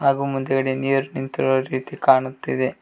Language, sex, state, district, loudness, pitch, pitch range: Kannada, male, Karnataka, Koppal, -21 LUFS, 135 Hz, 130-135 Hz